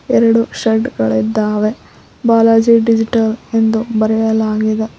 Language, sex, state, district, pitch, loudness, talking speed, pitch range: Kannada, female, Karnataka, Koppal, 225 Hz, -14 LUFS, 95 wpm, 215-230 Hz